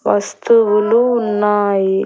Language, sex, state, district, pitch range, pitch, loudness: Telugu, female, Andhra Pradesh, Annamaya, 205-230 Hz, 210 Hz, -14 LUFS